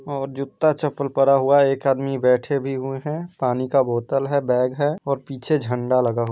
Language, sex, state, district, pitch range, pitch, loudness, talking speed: Hindi, male, Bihar, East Champaran, 130-140 Hz, 135 Hz, -21 LUFS, 220 wpm